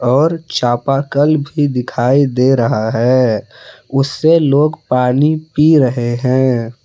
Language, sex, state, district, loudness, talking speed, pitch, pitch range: Hindi, male, Jharkhand, Palamu, -14 LUFS, 115 wpm, 135 Hz, 125-150 Hz